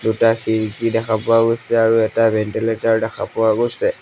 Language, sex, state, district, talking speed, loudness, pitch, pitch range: Assamese, male, Assam, Sonitpur, 165 wpm, -17 LUFS, 115 Hz, 110-115 Hz